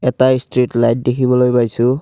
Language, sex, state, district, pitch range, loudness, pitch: Assamese, male, Assam, Kamrup Metropolitan, 120-125 Hz, -14 LUFS, 125 Hz